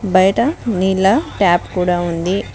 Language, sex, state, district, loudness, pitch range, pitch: Telugu, female, Telangana, Mahabubabad, -16 LUFS, 180-195 Hz, 190 Hz